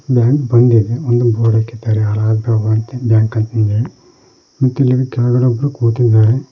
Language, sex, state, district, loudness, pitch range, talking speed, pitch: Kannada, male, Karnataka, Koppal, -14 LUFS, 110-125 Hz, 140 wpm, 115 Hz